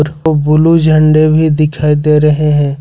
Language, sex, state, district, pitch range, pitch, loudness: Hindi, male, Jharkhand, Ranchi, 150-155 Hz, 150 Hz, -10 LUFS